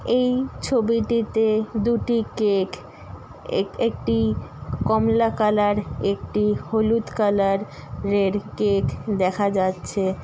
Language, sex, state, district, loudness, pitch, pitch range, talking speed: Bengali, female, West Bengal, Kolkata, -22 LUFS, 205 Hz, 185-225 Hz, 90 wpm